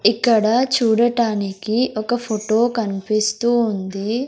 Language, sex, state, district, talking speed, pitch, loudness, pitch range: Telugu, female, Andhra Pradesh, Sri Satya Sai, 85 wpm, 225 Hz, -19 LUFS, 215-240 Hz